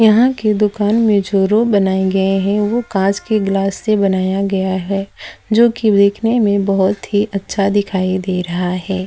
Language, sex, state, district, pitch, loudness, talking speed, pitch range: Hindi, female, Gujarat, Valsad, 200 Hz, -15 LUFS, 185 wpm, 190-215 Hz